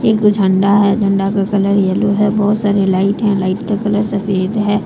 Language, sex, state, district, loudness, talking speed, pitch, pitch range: Hindi, female, Jharkhand, Deoghar, -14 LUFS, 210 wpm, 200 Hz, 195-210 Hz